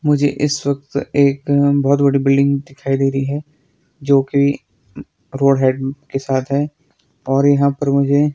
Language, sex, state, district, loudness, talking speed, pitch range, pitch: Hindi, male, Himachal Pradesh, Shimla, -16 LUFS, 160 wpm, 135-145 Hz, 140 Hz